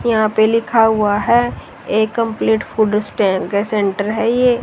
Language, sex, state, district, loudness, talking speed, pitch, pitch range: Hindi, female, Haryana, Rohtak, -16 LUFS, 170 wpm, 220 Hz, 210-230 Hz